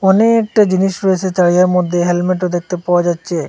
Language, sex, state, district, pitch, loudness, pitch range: Bengali, male, Assam, Hailakandi, 180 Hz, -14 LUFS, 175-190 Hz